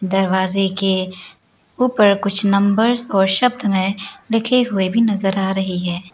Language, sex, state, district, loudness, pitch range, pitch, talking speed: Hindi, female, Arunachal Pradesh, Lower Dibang Valley, -17 LUFS, 190-220 Hz, 195 Hz, 145 wpm